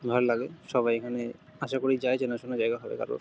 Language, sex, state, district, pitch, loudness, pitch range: Bengali, male, West Bengal, North 24 Parganas, 130 Hz, -29 LUFS, 120-165 Hz